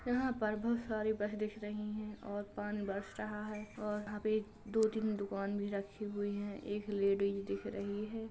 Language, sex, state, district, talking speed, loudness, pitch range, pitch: Hindi, female, Uttar Pradesh, Jalaun, 200 wpm, -39 LUFS, 205-215 Hz, 210 Hz